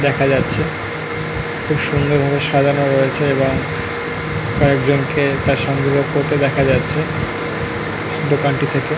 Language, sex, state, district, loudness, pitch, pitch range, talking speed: Bengali, male, West Bengal, North 24 Parganas, -17 LUFS, 140 Hz, 140-150 Hz, 115 wpm